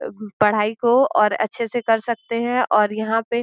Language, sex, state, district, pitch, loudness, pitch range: Hindi, female, Uttar Pradesh, Gorakhpur, 225 Hz, -19 LUFS, 215-235 Hz